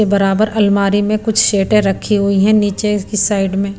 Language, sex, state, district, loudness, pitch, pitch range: Hindi, female, Punjab, Pathankot, -14 LUFS, 205 Hz, 200-210 Hz